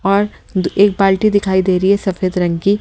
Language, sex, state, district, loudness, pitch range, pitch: Hindi, female, Delhi, New Delhi, -15 LUFS, 185-200 Hz, 195 Hz